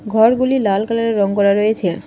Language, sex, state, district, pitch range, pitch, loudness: Bengali, female, West Bengal, Alipurduar, 200-230 Hz, 215 Hz, -15 LUFS